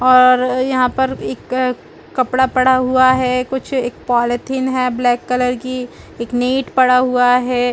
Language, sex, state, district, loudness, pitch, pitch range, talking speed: Hindi, female, Chhattisgarh, Bilaspur, -16 LUFS, 255 Hz, 250-255 Hz, 155 wpm